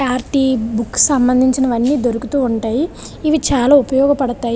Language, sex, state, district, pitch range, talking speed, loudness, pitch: Telugu, female, Andhra Pradesh, Visakhapatnam, 240-275 Hz, 90 wpm, -15 LUFS, 260 Hz